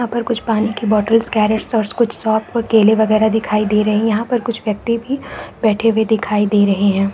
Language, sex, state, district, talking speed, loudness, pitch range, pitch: Hindi, female, Chhattisgarh, Bilaspur, 220 wpm, -16 LUFS, 210-230 Hz, 220 Hz